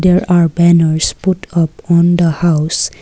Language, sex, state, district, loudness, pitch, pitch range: English, female, Assam, Kamrup Metropolitan, -12 LUFS, 170 Hz, 160-175 Hz